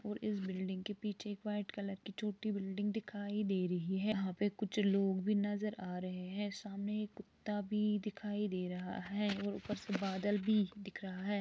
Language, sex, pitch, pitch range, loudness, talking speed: Urdu, female, 205 Hz, 190-210 Hz, -39 LUFS, 210 wpm